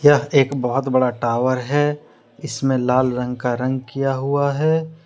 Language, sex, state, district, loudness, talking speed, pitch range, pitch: Hindi, male, Jharkhand, Deoghar, -19 LUFS, 180 wpm, 125-145 Hz, 135 Hz